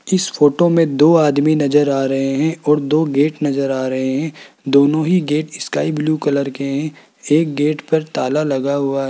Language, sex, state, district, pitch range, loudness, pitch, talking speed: Hindi, male, Rajasthan, Jaipur, 140-155 Hz, -16 LUFS, 150 Hz, 205 wpm